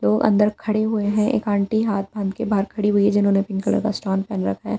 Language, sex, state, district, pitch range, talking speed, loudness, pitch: Hindi, female, Delhi, New Delhi, 195-215 Hz, 275 wpm, -21 LUFS, 205 Hz